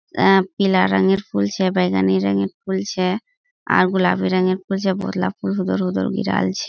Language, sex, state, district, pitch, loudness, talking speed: Hindi, female, Bihar, Kishanganj, 180 Hz, -19 LUFS, 135 wpm